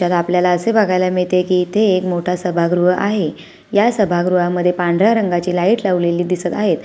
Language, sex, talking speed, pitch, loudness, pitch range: Marathi, female, 150 wpm, 180 Hz, -16 LUFS, 175-195 Hz